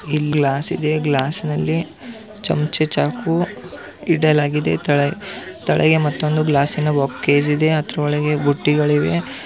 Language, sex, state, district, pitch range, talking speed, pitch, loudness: Kannada, male, Karnataka, Belgaum, 145-160 Hz, 95 wpm, 150 Hz, -18 LUFS